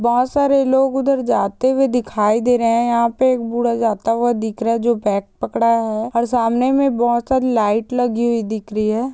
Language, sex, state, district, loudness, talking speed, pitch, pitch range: Hindi, female, Bihar, Jahanabad, -17 LUFS, 225 wpm, 235 Hz, 225-250 Hz